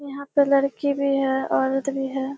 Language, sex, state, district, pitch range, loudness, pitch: Hindi, female, Bihar, Kishanganj, 270-280 Hz, -22 LUFS, 275 Hz